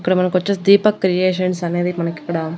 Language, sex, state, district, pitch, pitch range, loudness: Telugu, female, Andhra Pradesh, Annamaya, 180 Hz, 170-185 Hz, -17 LUFS